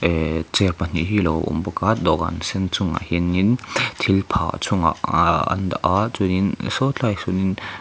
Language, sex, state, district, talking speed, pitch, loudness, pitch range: Mizo, male, Mizoram, Aizawl, 155 wpm, 95 Hz, -21 LUFS, 85-100 Hz